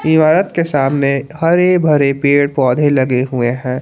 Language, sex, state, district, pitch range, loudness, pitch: Hindi, male, Jharkhand, Palamu, 130-155 Hz, -13 LUFS, 140 Hz